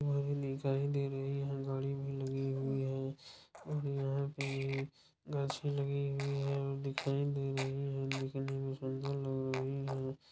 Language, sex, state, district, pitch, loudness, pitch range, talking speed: Hindi, male, Bihar, Jamui, 135 Hz, -38 LUFS, 135-140 Hz, 75 wpm